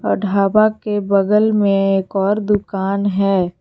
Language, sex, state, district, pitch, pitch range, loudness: Hindi, female, Jharkhand, Garhwa, 200 Hz, 195-210 Hz, -16 LUFS